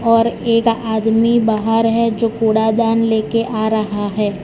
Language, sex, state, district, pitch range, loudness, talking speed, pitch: Hindi, male, Gujarat, Valsad, 220-230 Hz, -16 LUFS, 160 wpm, 225 Hz